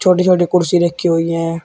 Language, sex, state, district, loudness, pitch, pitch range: Hindi, male, Uttar Pradesh, Shamli, -14 LUFS, 175 Hz, 165-180 Hz